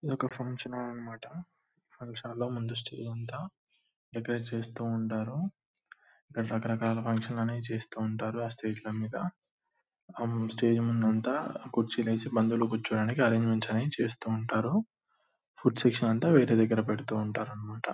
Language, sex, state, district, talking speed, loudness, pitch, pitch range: Telugu, male, Telangana, Nalgonda, 140 wpm, -31 LUFS, 115 Hz, 110-125 Hz